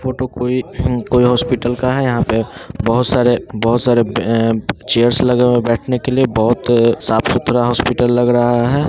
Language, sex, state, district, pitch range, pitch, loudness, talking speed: Hindi, male, Bihar, Muzaffarpur, 120-125 Hz, 120 Hz, -15 LUFS, 180 wpm